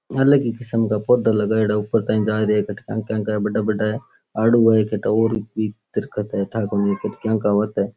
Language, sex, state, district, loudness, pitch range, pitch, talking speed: Rajasthani, male, Rajasthan, Churu, -20 LUFS, 105-110 Hz, 110 Hz, 265 wpm